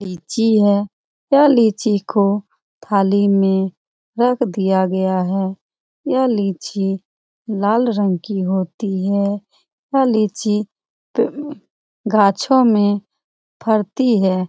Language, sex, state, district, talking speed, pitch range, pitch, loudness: Hindi, female, Bihar, Lakhisarai, 100 wpm, 190-225 Hz, 205 Hz, -17 LUFS